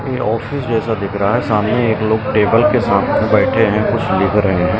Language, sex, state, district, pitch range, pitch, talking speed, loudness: Hindi, male, Maharashtra, Mumbai Suburban, 105-120 Hz, 110 Hz, 250 wpm, -15 LUFS